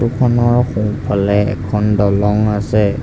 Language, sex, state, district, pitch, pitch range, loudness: Assamese, male, Assam, Sonitpur, 105 Hz, 105-120 Hz, -15 LUFS